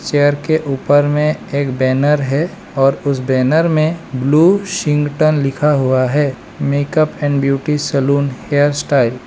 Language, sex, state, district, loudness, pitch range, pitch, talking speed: Hindi, male, Arunachal Pradesh, Lower Dibang Valley, -15 LUFS, 135-150 Hz, 145 Hz, 150 wpm